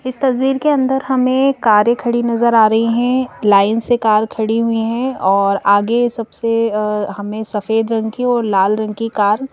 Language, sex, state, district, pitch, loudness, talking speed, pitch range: Hindi, female, Madhya Pradesh, Bhopal, 230 Hz, -15 LUFS, 195 wpm, 215-245 Hz